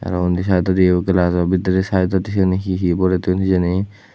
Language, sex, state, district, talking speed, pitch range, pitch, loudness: Chakma, male, Tripura, West Tripura, 175 wpm, 90-95 Hz, 95 Hz, -17 LUFS